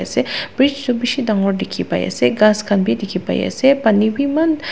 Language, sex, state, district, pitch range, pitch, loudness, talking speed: Nagamese, female, Nagaland, Dimapur, 200-275 Hz, 220 Hz, -17 LUFS, 180 wpm